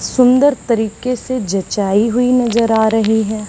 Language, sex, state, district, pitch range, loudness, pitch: Hindi, female, Haryana, Charkhi Dadri, 215-250 Hz, -14 LUFS, 225 Hz